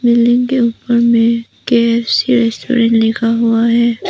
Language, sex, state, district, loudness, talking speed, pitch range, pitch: Hindi, female, Arunachal Pradesh, Papum Pare, -13 LUFS, 130 wpm, 230-235 Hz, 235 Hz